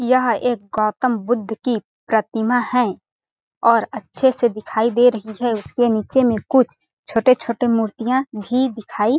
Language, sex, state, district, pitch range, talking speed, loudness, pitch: Hindi, female, Chhattisgarh, Balrampur, 220-250 Hz, 145 wpm, -19 LUFS, 235 Hz